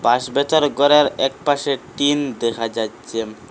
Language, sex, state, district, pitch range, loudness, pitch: Bengali, male, Assam, Hailakandi, 115-145 Hz, -19 LUFS, 135 Hz